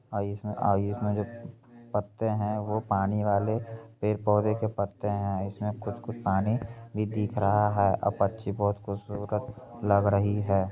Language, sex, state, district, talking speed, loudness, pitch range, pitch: Hindi, male, Bihar, Begusarai, 155 wpm, -29 LUFS, 100-110 Hz, 105 Hz